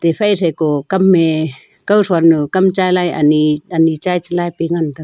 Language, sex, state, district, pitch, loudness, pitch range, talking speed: Wancho, female, Arunachal Pradesh, Longding, 165 Hz, -14 LUFS, 155-180 Hz, 190 wpm